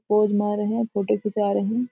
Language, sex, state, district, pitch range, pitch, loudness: Hindi, female, Chhattisgarh, Raigarh, 205-220 Hz, 210 Hz, -23 LUFS